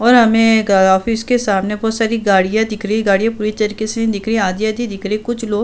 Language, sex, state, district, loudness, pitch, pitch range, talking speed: Hindi, female, Uttar Pradesh, Budaun, -15 LUFS, 220 Hz, 210-225 Hz, 285 wpm